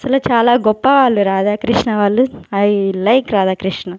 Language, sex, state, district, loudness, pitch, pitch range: Telugu, female, Andhra Pradesh, Sri Satya Sai, -14 LUFS, 215 Hz, 195-245 Hz